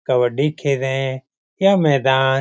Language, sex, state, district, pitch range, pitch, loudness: Hindi, male, Bihar, Lakhisarai, 130-145 Hz, 135 Hz, -18 LUFS